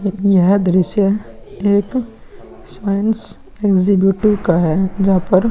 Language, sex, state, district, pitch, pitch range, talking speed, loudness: Hindi, male, Bihar, Vaishali, 200 Hz, 190-205 Hz, 120 wpm, -15 LUFS